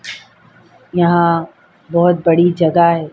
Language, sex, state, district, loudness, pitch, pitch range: Hindi, female, Delhi, New Delhi, -14 LUFS, 170 Hz, 165-175 Hz